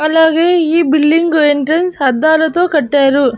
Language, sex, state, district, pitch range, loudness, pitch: Telugu, female, Andhra Pradesh, Annamaya, 290-330 Hz, -11 LUFS, 315 Hz